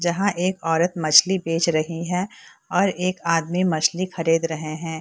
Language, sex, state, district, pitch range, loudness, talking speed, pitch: Hindi, female, Bihar, Purnia, 165-185 Hz, -21 LUFS, 165 wpm, 170 Hz